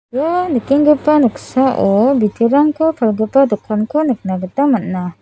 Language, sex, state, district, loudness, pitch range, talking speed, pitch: Garo, female, Meghalaya, South Garo Hills, -14 LUFS, 215-285 Hz, 105 wpm, 260 Hz